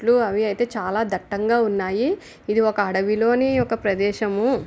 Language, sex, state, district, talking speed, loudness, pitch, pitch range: Telugu, female, Andhra Pradesh, Visakhapatnam, 140 wpm, -21 LUFS, 215 Hz, 200-235 Hz